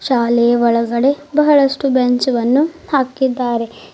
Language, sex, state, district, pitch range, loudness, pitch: Kannada, female, Karnataka, Bidar, 235-275 Hz, -15 LUFS, 255 Hz